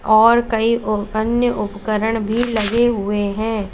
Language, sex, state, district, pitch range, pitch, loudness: Hindi, female, Uttar Pradesh, Lalitpur, 210-230 Hz, 220 Hz, -18 LUFS